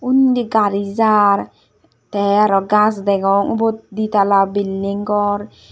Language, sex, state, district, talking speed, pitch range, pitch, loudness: Chakma, female, Tripura, Dhalai, 125 wpm, 200-215 Hz, 205 Hz, -16 LUFS